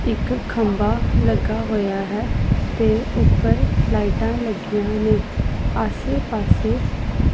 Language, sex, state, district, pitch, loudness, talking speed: Punjabi, female, Punjab, Pathankot, 200 Hz, -20 LUFS, 105 wpm